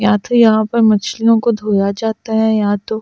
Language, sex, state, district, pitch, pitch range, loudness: Hindi, female, Delhi, New Delhi, 220 Hz, 205-225 Hz, -14 LUFS